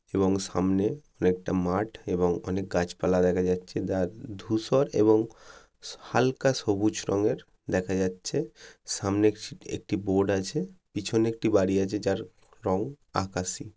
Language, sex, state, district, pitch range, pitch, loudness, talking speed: Bengali, male, West Bengal, Jalpaiguri, 90-110 Hz, 100 Hz, -28 LUFS, 120 wpm